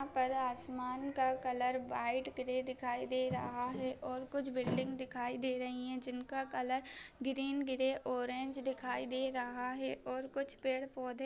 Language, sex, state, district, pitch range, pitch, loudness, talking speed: Hindi, female, Chhattisgarh, Raigarh, 250-265 Hz, 255 Hz, -39 LUFS, 160 wpm